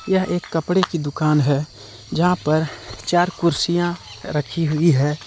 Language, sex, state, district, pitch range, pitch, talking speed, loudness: Hindi, male, Jharkhand, Deoghar, 150-175 Hz, 160 Hz, 150 wpm, -20 LUFS